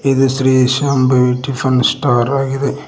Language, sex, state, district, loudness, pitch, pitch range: Kannada, male, Karnataka, Koppal, -14 LUFS, 135 Hz, 130-135 Hz